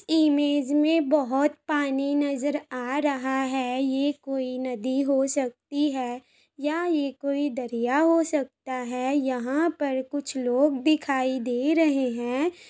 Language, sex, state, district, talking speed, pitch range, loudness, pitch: Hindi, female, Uttar Pradesh, Varanasi, 135 wpm, 260-295 Hz, -25 LUFS, 280 Hz